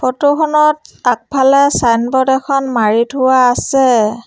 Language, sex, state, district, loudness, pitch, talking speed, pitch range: Assamese, female, Assam, Sonitpur, -12 LUFS, 260 Hz, 110 wpm, 240-280 Hz